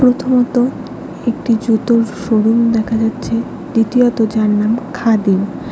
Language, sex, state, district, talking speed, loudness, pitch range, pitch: Bengali, female, West Bengal, Alipurduar, 115 wpm, -15 LUFS, 220-245 Hz, 230 Hz